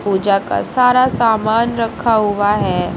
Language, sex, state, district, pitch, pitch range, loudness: Hindi, female, Uttar Pradesh, Lucknow, 220 Hz, 200-235 Hz, -15 LUFS